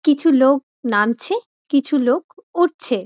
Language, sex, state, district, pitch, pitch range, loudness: Bengali, female, West Bengal, Dakshin Dinajpur, 280 Hz, 250-350 Hz, -18 LUFS